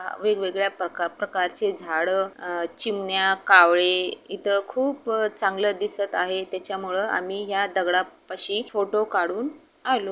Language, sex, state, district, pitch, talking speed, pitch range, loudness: Marathi, female, Maharashtra, Aurangabad, 200 Hz, 130 wpm, 185-215 Hz, -23 LUFS